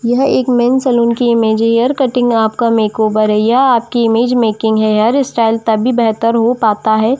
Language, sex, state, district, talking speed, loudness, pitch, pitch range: Hindi, female, Jharkhand, Jamtara, 190 wpm, -12 LUFS, 230 Hz, 220-245 Hz